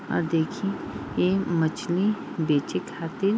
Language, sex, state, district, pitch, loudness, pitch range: Bhojpuri, female, Bihar, East Champaran, 180 Hz, -26 LUFS, 160-200 Hz